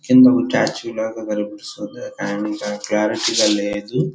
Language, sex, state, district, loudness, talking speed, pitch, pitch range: Telugu, male, Andhra Pradesh, Chittoor, -19 LUFS, 100 wpm, 105 Hz, 105-115 Hz